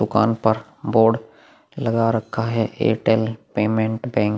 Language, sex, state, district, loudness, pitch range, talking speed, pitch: Hindi, male, Chhattisgarh, Korba, -21 LUFS, 110-115 Hz, 150 wpm, 110 Hz